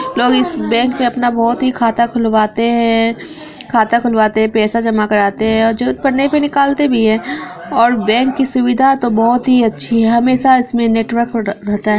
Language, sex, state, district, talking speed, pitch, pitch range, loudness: Hindi, female, Bihar, Araria, 185 wpm, 235 Hz, 225-255 Hz, -13 LUFS